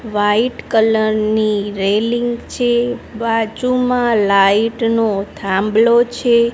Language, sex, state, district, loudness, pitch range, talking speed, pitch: Gujarati, female, Gujarat, Gandhinagar, -16 LUFS, 210-240 Hz, 90 wpm, 225 Hz